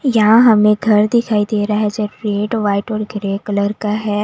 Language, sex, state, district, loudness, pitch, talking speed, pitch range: Hindi, female, Delhi, New Delhi, -15 LUFS, 210 Hz, 210 wpm, 205-220 Hz